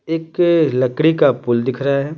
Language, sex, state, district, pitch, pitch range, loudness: Hindi, male, Bihar, Patna, 145 Hz, 130-160 Hz, -16 LUFS